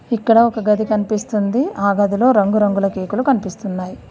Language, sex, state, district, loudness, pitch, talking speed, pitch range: Telugu, female, Telangana, Mahabubabad, -17 LUFS, 210 Hz, 130 wpm, 200-230 Hz